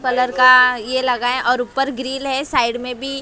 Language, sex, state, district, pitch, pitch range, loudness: Hindi, female, Maharashtra, Mumbai Suburban, 255 Hz, 250-270 Hz, -16 LUFS